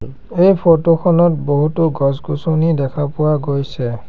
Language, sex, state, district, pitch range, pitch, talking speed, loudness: Assamese, male, Assam, Sonitpur, 140-165 Hz, 150 Hz, 115 wpm, -15 LUFS